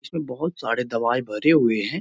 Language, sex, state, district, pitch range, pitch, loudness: Hindi, male, Bihar, Muzaffarpur, 115-160 Hz, 125 Hz, -22 LUFS